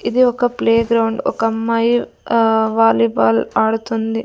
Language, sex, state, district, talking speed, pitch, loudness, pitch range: Telugu, female, Andhra Pradesh, Sri Satya Sai, 115 wpm, 225 Hz, -16 LUFS, 220-230 Hz